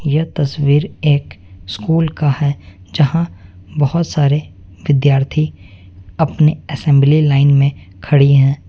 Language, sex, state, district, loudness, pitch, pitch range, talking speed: Hindi, male, West Bengal, Alipurduar, -15 LUFS, 140 Hz, 95-150 Hz, 110 wpm